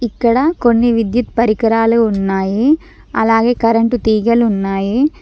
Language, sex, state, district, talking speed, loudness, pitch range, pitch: Telugu, female, Telangana, Mahabubabad, 105 wpm, -14 LUFS, 220-240 Hz, 230 Hz